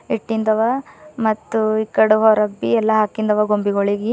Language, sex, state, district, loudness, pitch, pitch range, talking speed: Kannada, female, Karnataka, Bidar, -18 LUFS, 220 Hz, 210-220 Hz, 130 wpm